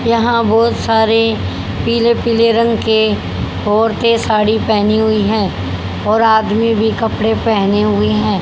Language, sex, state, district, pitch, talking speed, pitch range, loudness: Hindi, female, Haryana, Jhajjar, 220 Hz, 135 wpm, 210-230 Hz, -14 LUFS